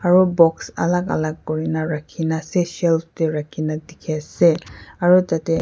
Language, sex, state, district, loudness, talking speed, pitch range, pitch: Nagamese, female, Nagaland, Kohima, -20 LUFS, 150 wpm, 155-175 Hz, 165 Hz